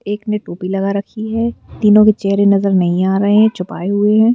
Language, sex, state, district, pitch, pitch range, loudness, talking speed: Hindi, female, Madhya Pradesh, Bhopal, 200 Hz, 195-215 Hz, -14 LUFS, 235 wpm